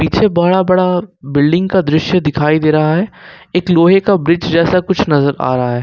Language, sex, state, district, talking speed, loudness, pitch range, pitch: Hindi, male, Jharkhand, Ranchi, 205 wpm, -13 LUFS, 150-185 Hz, 170 Hz